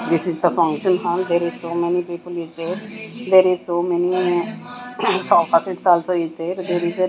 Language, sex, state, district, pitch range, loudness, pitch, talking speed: English, female, Punjab, Kapurthala, 170-185 Hz, -20 LUFS, 175 Hz, 205 wpm